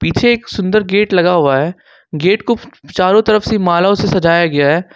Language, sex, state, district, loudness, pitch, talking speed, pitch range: Hindi, male, Jharkhand, Ranchi, -13 LUFS, 185 Hz, 205 wpm, 170-215 Hz